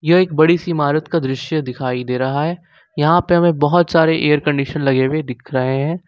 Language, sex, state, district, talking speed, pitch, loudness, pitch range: Hindi, male, Jharkhand, Ranchi, 225 wpm, 155 Hz, -16 LUFS, 135-170 Hz